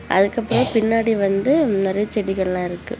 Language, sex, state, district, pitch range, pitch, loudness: Tamil, female, Tamil Nadu, Kanyakumari, 195-225 Hz, 205 Hz, -19 LUFS